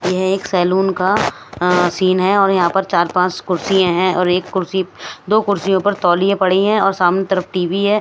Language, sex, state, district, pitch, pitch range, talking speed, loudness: Hindi, female, Himachal Pradesh, Shimla, 185 Hz, 180-195 Hz, 170 wpm, -16 LUFS